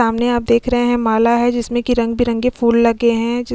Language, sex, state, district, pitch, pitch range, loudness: Hindi, female, Uttarakhand, Tehri Garhwal, 235 Hz, 235-240 Hz, -16 LUFS